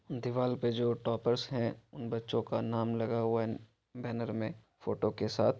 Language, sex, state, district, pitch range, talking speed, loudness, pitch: Maithili, male, Bihar, Supaul, 115-120 Hz, 160 wpm, -34 LUFS, 115 Hz